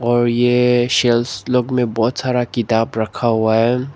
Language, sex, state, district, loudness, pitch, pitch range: Hindi, male, Nagaland, Dimapur, -17 LUFS, 120 Hz, 115-125 Hz